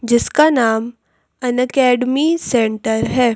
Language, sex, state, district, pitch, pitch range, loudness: Hindi, female, Madhya Pradesh, Bhopal, 245 Hz, 235-260 Hz, -16 LUFS